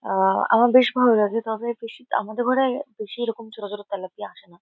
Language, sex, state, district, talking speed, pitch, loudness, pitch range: Bengali, female, West Bengal, Kolkata, 210 wpm, 230 Hz, -22 LUFS, 210-245 Hz